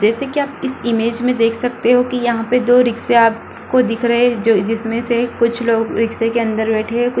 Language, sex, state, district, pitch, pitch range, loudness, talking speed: Hindi, female, Bihar, Supaul, 235 Hz, 230-245 Hz, -16 LUFS, 250 wpm